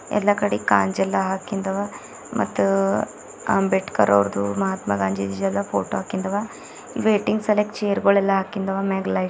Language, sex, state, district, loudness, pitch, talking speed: Kannada, male, Karnataka, Bidar, -22 LUFS, 195 Hz, 165 wpm